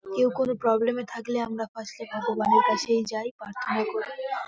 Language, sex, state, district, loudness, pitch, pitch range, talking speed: Bengali, female, West Bengal, North 24 Parganas, -26 LUFS, 235 Hz, 225-250 Hz, 200 wpm